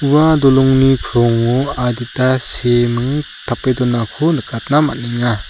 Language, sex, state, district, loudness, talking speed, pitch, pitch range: Garo, male, Meghalaya, South Garo Hills, -15 LUFS, 100 wpm, 125 Hz, 120-135 Hz